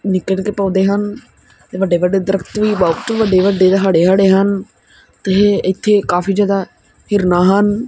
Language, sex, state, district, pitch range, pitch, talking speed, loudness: Punjabi, male, Punjab, Kapurthala, 185-205 Hz, 195 Hz, 150 wpm, -14 LUFS